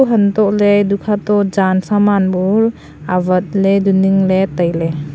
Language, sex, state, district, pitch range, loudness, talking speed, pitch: Wancho, female, Arunachal Pradesh, Longding, 185-205 Hz, -14 LUFS, 165 wpm, 195 Hz